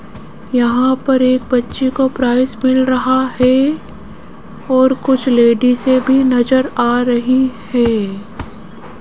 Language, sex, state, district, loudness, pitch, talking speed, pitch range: Hindi, female, Rajasthan, Jaipur, -14 LUFS, 255 Hz, 115 wpm, 240-260 Hz